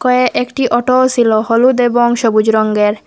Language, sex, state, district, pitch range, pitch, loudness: Bengali, female, Assam, Hailakandi, 220-250 Hz, 240 Hz, -12 LUFS